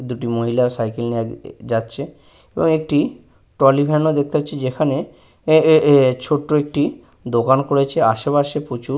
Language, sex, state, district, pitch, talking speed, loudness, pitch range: Bengali, male, West Bengal, Purulia, 140 Hz, 165 wpm, -18 LUFS, 125-150 Hz